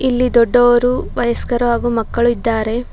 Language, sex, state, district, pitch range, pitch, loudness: Kannada, female, Karnataka, Bangalore, 235-245 Hz, 240 Hz, -15 LUFS